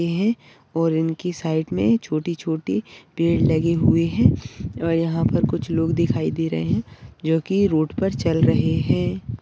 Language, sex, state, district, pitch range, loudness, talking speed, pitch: Hindi, male, Maharashtra, Dhule, 120-165 Hz, -21 LUFS, 165 wpm, 160 Hz